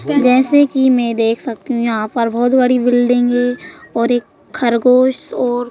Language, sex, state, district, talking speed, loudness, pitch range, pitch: Hindi, female, Madhya Pradesh, Bhopal, 170 wpm, -14 LUFS, 235-255 Hz, 245 Hz